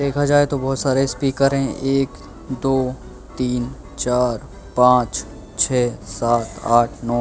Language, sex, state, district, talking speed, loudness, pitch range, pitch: Hindi, male, Madhya Pradesh, Bhopal, 135 wpm, -19 LUFS, 120-135 Hz, 125 Hz